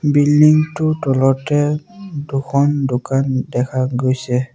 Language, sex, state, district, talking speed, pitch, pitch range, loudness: Assamese, male, Assam, Sonitpur, 90 wpm, 140 Hz, 130-150 Hz, -16 LUFS